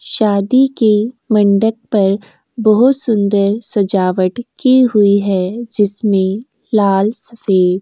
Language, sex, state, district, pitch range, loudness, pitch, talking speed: Hindi, female, Uttar Pradesh, Jyotiba Phule Nagar, 200-230 Hz, -13 LUFS, 210 Hz, 110 wpm